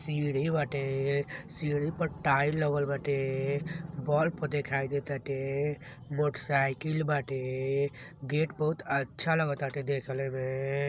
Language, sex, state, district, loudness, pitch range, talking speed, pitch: Bhojpuri, male, Uttar Pradesh, Deoria, -31 LUFS, 135-150 Hz, 115 wpm, 140 Hz